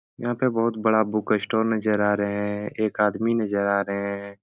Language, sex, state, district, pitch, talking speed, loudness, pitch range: Hindi, male, Uttar Pradesh, Etah, 105 Hz, 215 wpm, -24 LUFS, 100-110 Hz